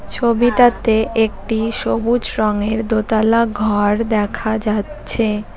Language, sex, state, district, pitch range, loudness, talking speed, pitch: Bengali, female, West Bengal, Cooch Behar, 210-230 Hz, -17 LUFS, 85 wpm, 220 Hz